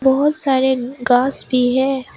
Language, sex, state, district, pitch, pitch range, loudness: Hindi, female, Arunachal Pradesh, Papum Pare, 265 Hz, 250-270 Hz, -16 LUFS